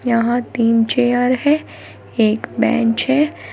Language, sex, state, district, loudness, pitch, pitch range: Hindi, female, Uttar Pradesh, Shamli, -16 LUFS, 240 Hz, 230-255 Hz